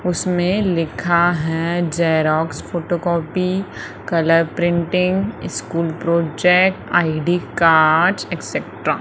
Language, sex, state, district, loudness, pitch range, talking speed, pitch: Hindi, female, Madhya Pradesh, Umaria, -18 LUFS, 165-180 Hz, 85 wpm, 170 Hz